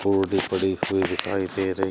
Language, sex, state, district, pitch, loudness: Hindi, male, Uttar Pradesh, Shamli, 95 Hz, -24 LUFS